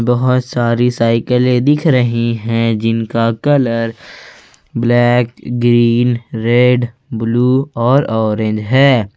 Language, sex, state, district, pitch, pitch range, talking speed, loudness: Hindi, male, Jharkhand, Ranchi, 120 Hz, 115-125 Hz, 100 wpm, -14 LUFS